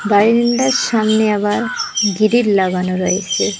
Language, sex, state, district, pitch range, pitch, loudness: Bengali, female, West Bengal, Cooch Behar, 190-225 Hz, 210 Hz, -15 LUFS